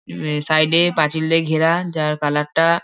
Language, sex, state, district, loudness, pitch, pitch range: Bengali, male, West Bengal, Dakshin Dinajpur, -18 LUFS, 160 Hz, 150-165 Hz